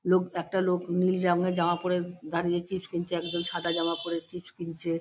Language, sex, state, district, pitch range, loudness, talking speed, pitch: Bengali, female, West Bengal, Dakshin Dinajpur, 170-180 Hz, -29 LUFS, 190 wpm, 175 Hz